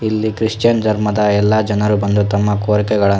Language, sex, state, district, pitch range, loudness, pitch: Kannada, male, Karnataka, Shimoga, 105-110 Hz, -15 LUFS, 105 Hz